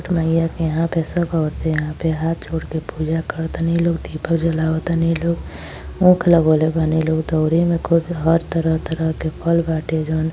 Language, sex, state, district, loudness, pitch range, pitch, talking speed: Bhojpuri, female, Uttar Pradesh, Gorakhpur, -19 LUFS, 160-165 Hz, 160 Hz, 185 wpm